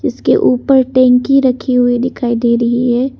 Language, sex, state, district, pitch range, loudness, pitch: Hindi, female, Arunachal Pradesh, Lower Dibang Valley, 240-260 Hz, -12 LUFS, 250 Hz